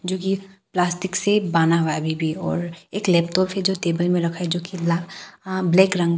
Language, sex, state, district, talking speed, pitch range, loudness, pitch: Hindi, female, Arunachal Pradesh, Papum Pare, 225 wpm, 170-190 Hz, -22 LUFS, 180 Hz